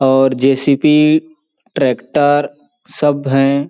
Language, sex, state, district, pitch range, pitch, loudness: Hindi, male, Chhattisgarh, Balrampur, 135-150 Hz, 145 Hz, -13 LUFS